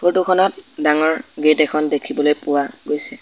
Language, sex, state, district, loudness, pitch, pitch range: Assamese, male, Assam, Sonitpur, -18 LUFS, 150 Hz, 150-160 Hz